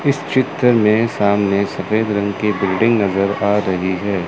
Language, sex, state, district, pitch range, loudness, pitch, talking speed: Hindi, male, Chandigarh, Chandigarh, 100-110 Hz, -17 LUFS, 100 Hz, 170 wpm